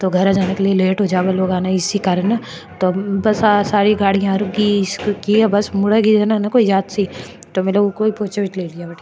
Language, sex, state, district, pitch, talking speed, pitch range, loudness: Marwari, female, Rajasthan, Churu, 200 Hz, 85 wpm, 190-210 Hz, -16 LUFS